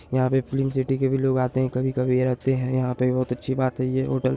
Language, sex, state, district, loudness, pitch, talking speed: Hindi, male, Bihar, Saharsa, -24 LUFS, 130 Hz, 290 wpm